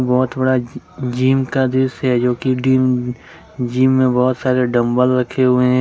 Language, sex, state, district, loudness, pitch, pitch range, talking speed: Hindi, male, Jharkhand, Ranchi, -16 LUFS, 130 Hz, 125-130 Hz, 185 wpm